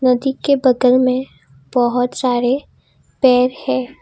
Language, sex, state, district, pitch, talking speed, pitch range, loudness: Hindi, female, Assam, Kamrup Metropolitan, 250 Hz, 120 wpm, 245-255 Hz, -16 LUFS